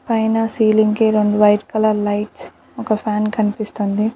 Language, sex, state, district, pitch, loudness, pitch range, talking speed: Telugu, female, Telangana, Mahabubabad, 215 Hz, -17 LUFS, 210-220 Hz, 145 wpm